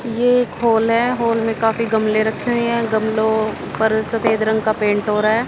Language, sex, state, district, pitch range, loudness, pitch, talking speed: Hindi, female, Haryana, Jhajjar, 220-230 Hz, -18 LUFS, 225 Hz, 220 wpm